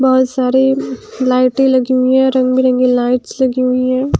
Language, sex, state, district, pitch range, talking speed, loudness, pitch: Hindi, female, Haryana, Jhajjar, 255-260 Hz, 185 wpm, -13 LUFS, 255 Hz